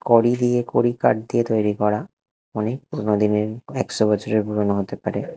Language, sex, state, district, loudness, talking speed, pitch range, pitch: Bengali, male, Odisha, Khordha, -21 LUFS, 145 wpm, 105-120 Hz, 110 Hz